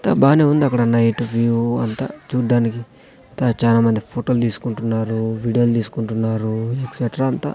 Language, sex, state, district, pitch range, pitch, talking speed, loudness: Telugu, male, Andhra Pradesh, Sri Satya Sai, 115-125 Hz, 115 Hz, 150 wpm, -19 LUFS